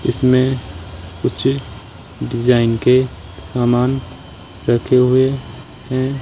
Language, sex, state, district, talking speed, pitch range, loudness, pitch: Hindi, male, Rajasthan, Jaipur, 75 wpm, 100-130 Hz, -17 LUFS, 120 Hz